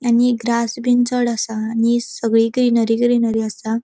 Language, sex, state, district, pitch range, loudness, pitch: Konkani, female, Goa, North and South Goa, 225-240 Hz, -17 LUFS, 235 Hz